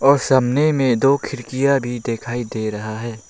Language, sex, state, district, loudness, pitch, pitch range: Hindi, male, Arunachal Pradesh, Lower Dibang Valley, -19 LUFS, 120 Hz, 115-140 Hz